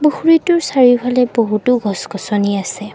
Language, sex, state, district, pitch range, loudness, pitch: Assamese, female, Assam, Kamrup Metropolitan, 205-270 Hz, -15 LUFS, 245 Hz